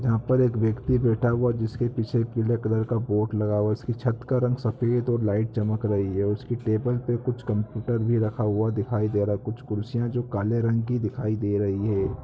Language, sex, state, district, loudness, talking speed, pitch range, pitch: Hindi, male, Uttar Pradesh, Ghazipur, -25 LUFS, 235 wpm, 105-120 Hz, 115 Hz